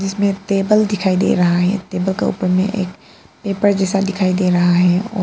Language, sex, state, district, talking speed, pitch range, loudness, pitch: Hindi, female, Arunachal Pradesh, Papum Pare, 205 wpm, 185-200 Hz, -16 LUFS, 190 Hz